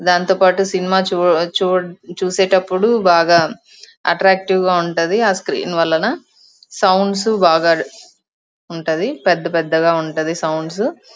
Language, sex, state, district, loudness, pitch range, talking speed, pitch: Telugu, female, Andhra Pradesh, Chittoor, -16 LUFS, 165-195 Hz, 110 wpm, 185 Hz